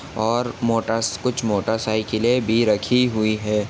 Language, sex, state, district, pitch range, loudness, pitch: Hindi, male, Maharashtra, Dhule, 110-120 Hz, -21 LUFS, 110 Hz